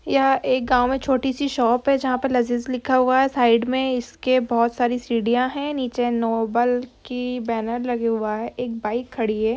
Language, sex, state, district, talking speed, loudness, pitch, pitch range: Hindi, female, Bihar, Jahanabad, 205 wpm, -21 LUFS, 245 Hz, 235-260 Hz